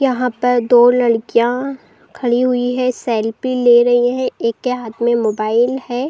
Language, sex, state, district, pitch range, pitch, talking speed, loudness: Hindi, female, Uttar Pradesh, Jalaun, 235-250 Hz, 245 Hz, 155 wpm, -15 LUFS